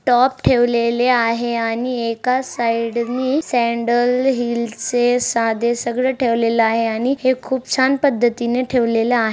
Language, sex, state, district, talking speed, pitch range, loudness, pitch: Marathi, female, Maharashtra, Chandrapur, 140 wpm, 235-255 Hz, -18 LUFS, 240 Hz